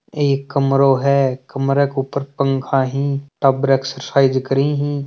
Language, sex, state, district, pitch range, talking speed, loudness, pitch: Marwari, male, Rajasthan, Churu, 135-140 Hz, 155 wpm, -18 LUFS, 140 Hz